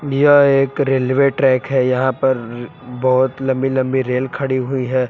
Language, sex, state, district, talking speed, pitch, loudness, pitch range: Hindi, male, Jharkhand, Palamu, 165 wpm, 130 Hz, -16 LUFS, 130-135 Hz